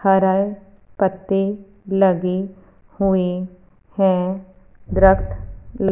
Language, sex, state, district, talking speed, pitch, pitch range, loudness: Hindi, female, Punjab, Fazilka, 60 wpm, 190 Hz, 180-195 Hz, -19 LUFS